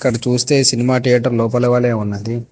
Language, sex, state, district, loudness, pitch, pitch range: Telugu, male, Telangana, Hyderabad, -15 LUFS, 125 Hz, 115-125 Hz